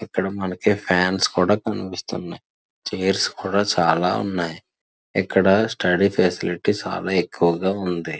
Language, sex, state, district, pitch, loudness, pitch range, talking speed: Telugu, male, Andhra Pradesh, Srikakulam, 95 Hz, -21 LUFS, 90-95 Hz, 110 wpm